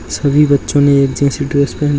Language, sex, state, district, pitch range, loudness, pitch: Hindi, male, Bihar, Begusarai, 140-145 Hz, -13 LUFS, 140 Hz